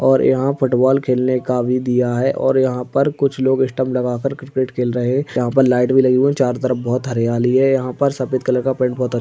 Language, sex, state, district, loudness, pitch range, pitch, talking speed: Hindi, male, Uttar Pradesh, Deoria, -17 LUFS, 125-135 Hz, 130 Hz, 250 wpm